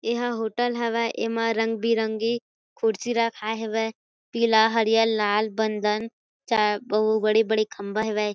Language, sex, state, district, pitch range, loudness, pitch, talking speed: Chhattisgarhi, female, Chhattisgarh, Kabirdham, 215-230 Hz, -24 LUFS, 225 Hz, 120 wpm